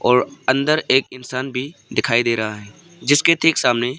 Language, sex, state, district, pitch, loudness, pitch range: Hindi, male, Arunachal Pradesh, Papum Pare, 130 Hz, -18 LUFS, 120-145 Hz